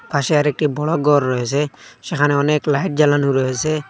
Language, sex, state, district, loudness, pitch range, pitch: Bengali, male, Assam, Hailakandi, -18 LUFS, 140-150 Hz, 145 Hz